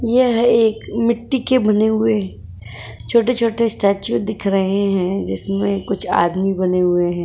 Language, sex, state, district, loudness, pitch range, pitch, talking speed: Hindi, female, Uttar Pradesh, Jyotiba Phule Nagar, -17 LUFS, 185-230 Hz, 200 Hz, 150 wpm